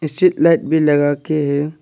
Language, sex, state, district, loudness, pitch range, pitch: Hindi, male, Arunachal Pradesh, Lower Dibang Valley, -16 LUFS, 145-160 Hz, 155 Hz